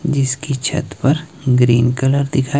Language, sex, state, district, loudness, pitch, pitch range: Hindi, male, Himachal Pradesh, Shimla, -16 LUFS, 135 Hz, 130-145 Hz